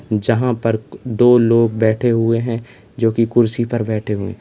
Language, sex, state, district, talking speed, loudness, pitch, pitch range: Hindi, male, Uttar Pradesh, Lalitpur, 165 wpm, -16 LUFS, 115 Hz, 110-120 Hz